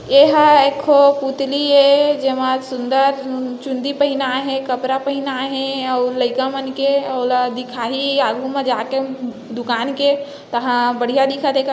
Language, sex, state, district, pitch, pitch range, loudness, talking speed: Hindi, female, Chhattisgarh, Bilaspur, 270 Hz, 255-280 Hz, -17 LUFS, 150 wpm